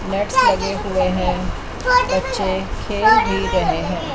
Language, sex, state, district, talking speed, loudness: Hindi, female, Chandigarh, Chandigarh, 130 wpm, -18 LUFS